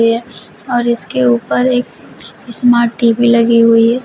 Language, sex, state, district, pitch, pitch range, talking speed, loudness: Hindi, female, Uttar Pradesh, Shamli, 235 Hz, 230-240 Hz, 135 wpm, -12 LUFS